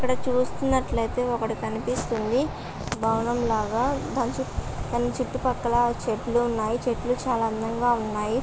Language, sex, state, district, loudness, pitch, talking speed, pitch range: Telugu, female, Andhra Pradesh, Visakhapatnam, -26 LUFS, 240 Hz, 105 wpm, 225-250 Hz